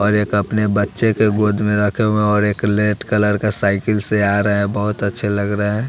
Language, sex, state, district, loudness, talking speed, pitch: Hindi, male, Bihar, West Champaran, -16 LUFS, 245 wpm, 105 Hz